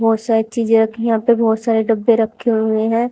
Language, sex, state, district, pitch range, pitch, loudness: Hindi, female, Haryana, Rohtak, 220-230 Hz, 225 Hz, -16 LUFS